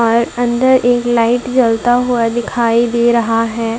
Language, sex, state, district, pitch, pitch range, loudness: Hindi, female, Jharkhand, Garhwa, 235 Hz, 230-245 Hz, -13 LUFS